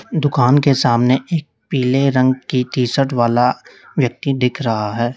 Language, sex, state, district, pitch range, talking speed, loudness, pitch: Hindi, male, Uttar Pradesh, Lalitpur, 120-140 Hz, 160 wpm, -16 LUFS, 130 Hz